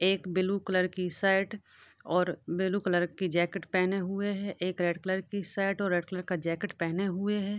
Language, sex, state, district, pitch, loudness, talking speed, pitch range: Hindi, female, Chhattisgarh, Bilaspur, 185 Hz, -30 LUFS, 195 wpm, 180-195 Hz